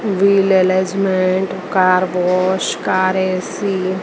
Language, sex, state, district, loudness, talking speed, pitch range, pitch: Gujarati, female, Gujarat, Gandhinagar, -16 LUFS, 105 wpm, 185-190 Hz, 185 Hz